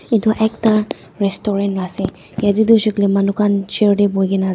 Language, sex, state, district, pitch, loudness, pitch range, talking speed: Nagamese, female, Nagaland, Dimapur, 205 Hz, -16 LUFS, 195-215 Hz, 210 wpm